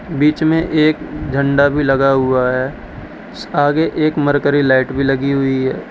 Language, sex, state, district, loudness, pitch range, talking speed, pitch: Hindi, male, Uttar Pradesh, Lalitpur, -15 LUFS, 135-150 Hz, 160 wpm, 140 Hz